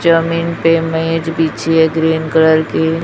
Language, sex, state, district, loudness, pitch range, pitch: Hindi, male, Chhattisgarh, Raipur, -14 LUFS, 160-165 Hz, 165 Hz